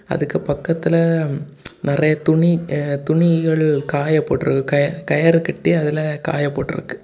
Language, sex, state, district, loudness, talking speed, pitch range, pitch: Tamil, male, Tamil Nadu, Kanyakumari, -18 LUFS, 120 wpm, 145-165 Hz, 155 Hz